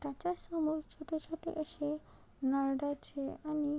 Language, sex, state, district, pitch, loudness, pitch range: Marathi, female, Maharashtra, Chandrapur, 305 Hz, -38 LUFS, 285-315 Hz